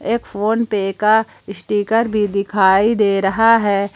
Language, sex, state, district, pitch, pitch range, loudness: Hindi, female, Jharkhand, Palamu, 210 Hz, 200-225 Hz, -16 LUFS